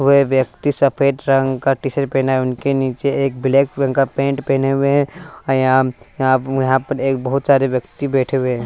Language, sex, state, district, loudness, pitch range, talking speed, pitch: Hindi, male, Bihar, West Champaran, -17 LUFS, 130-140 Hz, 220 wpm, 135 Hz